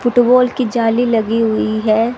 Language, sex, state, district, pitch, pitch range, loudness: Hindi, female, Haryana, Rohtak, 235 Hz, 225-245 Hz, -14 LUFS